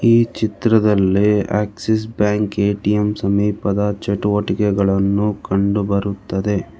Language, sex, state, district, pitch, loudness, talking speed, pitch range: Kannada, male, Karnataka, Bangalore, 105 Hz, -18 LUFS, 70 wpm, 100-105 Hz